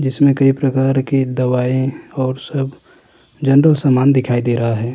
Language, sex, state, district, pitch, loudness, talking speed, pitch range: Hindi, male, Uttarakhand, Tehri Garhwal, 135 Hz, -16 LUFS, 160 wpm, 125-135 Hz